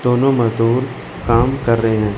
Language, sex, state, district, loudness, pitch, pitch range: Hindi, male, Chandigarh, Chandigarh, -16 LUFS, 115 Hz, 110-125 Hz